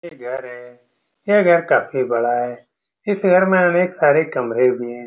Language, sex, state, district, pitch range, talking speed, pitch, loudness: Hindi, male, Bihar, Saran, 120-175 Hz, 190 wpm, 130 Hz, -17 LUFS